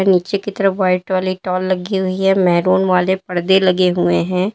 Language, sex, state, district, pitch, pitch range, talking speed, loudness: Hindi, female, Uttar Pradesh, Lalitpur, 185 Hz, 180-190 Hz, 195 wpm, -16 LUFS